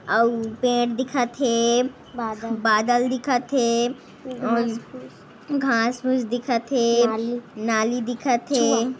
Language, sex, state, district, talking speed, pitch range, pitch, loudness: Hindi, female, Chhattisgarh, Kabirdham, 65 wpm, 230-255 Hz, 240 Hz, -22 LUFS